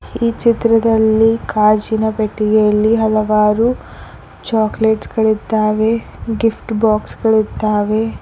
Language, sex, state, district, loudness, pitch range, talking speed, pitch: Kannada, female, Karnataka, Koppal, -15 LUFS, 215-225 Hz, 75 wpm, 220 Hz